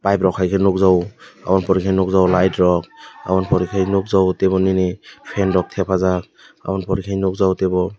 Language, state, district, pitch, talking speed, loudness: Kokborok, Tripura, West Tripura, 95 Hz, 210 wpm, -18 LUFS